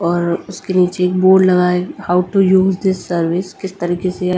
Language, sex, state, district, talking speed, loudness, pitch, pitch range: Hindi, female, Delhi, New Delhi, 180 wpm, -15 LUFS, 180 Hz, 175-190 Hz